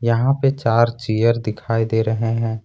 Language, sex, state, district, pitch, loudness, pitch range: Hindi, male, Jharkhand, Ranchi, 115 Hz, -19 LUFS, 110-115 Hz